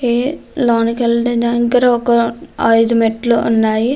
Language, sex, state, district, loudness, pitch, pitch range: Telugu, female, Andhra Pradesh, Krishna, -14 LUFS, 235 Hz, 230-245 Hz